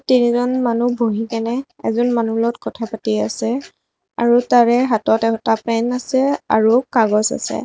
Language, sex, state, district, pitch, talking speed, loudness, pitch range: Assamese, female, Assam, Kamrup Metropolitan, 235 Hz, 150 wpm, -17 LUFS, 225-245 Hz